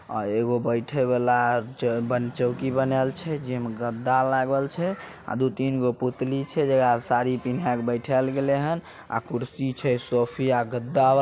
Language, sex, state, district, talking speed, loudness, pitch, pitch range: Maithili, male, Bihar, Samastipur, 175 wpm, -25 LUFS, 125 Hz, 120-135 Hz